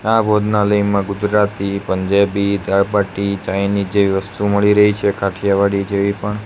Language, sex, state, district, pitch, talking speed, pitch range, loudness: Gujarati, male, Gujarat, Gandhinagar, 100 Hz, 130 wpm, 100-105 Hz, -16 LUFS